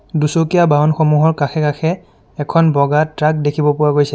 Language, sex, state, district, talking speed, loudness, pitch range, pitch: Assamese, male, Assam, Sonitpur, 145 wpm, -14 LUFS, 145-160 Hz, 150 Hz